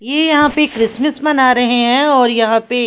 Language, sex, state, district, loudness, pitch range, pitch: Hindi, female, Haryana, Charkhi Dadri, -12 LUFS, 240-295 Hz, 255 Hz